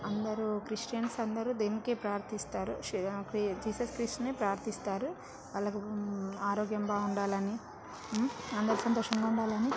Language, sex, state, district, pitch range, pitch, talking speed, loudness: Telugu, female, Telangana, Nalgonda, 205-225 Hz, 215 Hz, 105 wpm, -35 LUFS